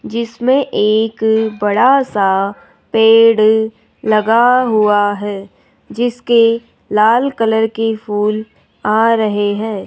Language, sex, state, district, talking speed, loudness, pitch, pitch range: Hindi, male, Rajasthan, Jaipur, 95 wpm, -14 LUFS, 220 Hz, 210-230 Hz